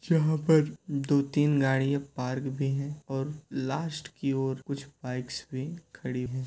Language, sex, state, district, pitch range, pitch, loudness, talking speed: Hindi, male, Uttar Pradesh, Jyotiba Phule Nagar, 135-150 Hz, 140 Hz, -30 LUFS, 155 wpm